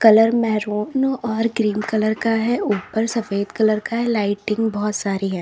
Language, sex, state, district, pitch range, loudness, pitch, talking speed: Hindi, female, Uttar Pradesh, Lalitpur, 210-230 Hz, -20 LUFS, 220 Hz, 175 wpm